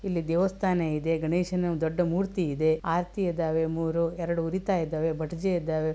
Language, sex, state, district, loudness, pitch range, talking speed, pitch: Kannada, female, Karnataka, Belgaum, -28 LUFS, 160-180 Hz, 140 wpm, 170 Hz